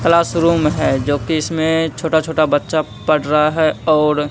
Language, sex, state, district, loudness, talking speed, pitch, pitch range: Hindi, male, Bihar, Katihar, -16 LUFS, 165 wpm, 155 Hz, 150-160 Hz